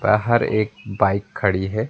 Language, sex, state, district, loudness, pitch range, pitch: Hindi, male, West Bengal, Alipurduar, -20 LUFS, 100-110 Hz, 105 Hz